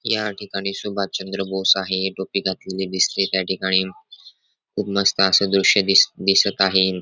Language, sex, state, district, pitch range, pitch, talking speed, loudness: Marathi, male, Maharashtra, Dhule, 95-100 Hz, 95 Hz, 145 wpm, -19 LUFS